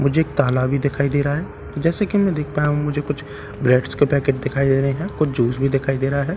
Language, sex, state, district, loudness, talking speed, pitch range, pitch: Hindi, male, Bihar, Katihar, -20 LUFS, 280 wpm, 135-150 Hz, 140 Hz